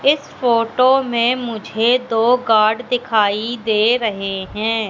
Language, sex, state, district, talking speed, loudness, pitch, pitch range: Hindi, female, Madhya Pradesh, Katni, 120 wpm, -17 LUFS, 230 Hz, 220-250 Hz